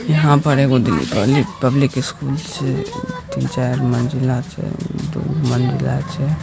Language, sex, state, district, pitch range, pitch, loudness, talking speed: Hindi, male, Bihar, Samastipur, 130-155 Hz, 135 Hz, -18 LUFS, 130 wpm